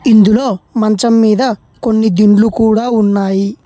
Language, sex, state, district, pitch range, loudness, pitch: Telugu, male, Telangana, Hyderabad, 205-230 Hz, -11 LUFS, 220 Hz